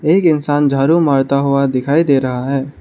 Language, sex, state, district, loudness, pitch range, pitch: Hindi, male, Arunachal Pradesh, Lower Dibang Valley, -14 LUFS, 135-150 Hz, 140 Hz